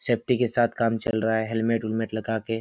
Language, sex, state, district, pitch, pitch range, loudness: Hindi, male, Bihar, Kishanganj, 115 Hz, 110-115 Hz, -25 LUFS